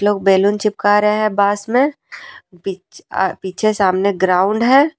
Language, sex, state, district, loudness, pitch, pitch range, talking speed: Hindi, female, Jharkhand, Deoghar, -16 LUFS, 205 Hz, 195-215 Hz, 130 wpm